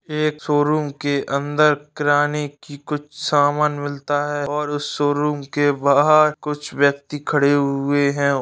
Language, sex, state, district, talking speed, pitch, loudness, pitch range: Hindi, male, Bihar, Saharsa, 145 wpm, 145 Hz, -19 LUFS, 145-150 Hz